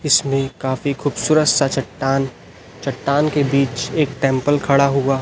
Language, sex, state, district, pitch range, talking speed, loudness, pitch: Hindi, male, Chhattisgarh, Raipur, 135-145 Hz, 140 wpm, -18 LUFS, 140 Hz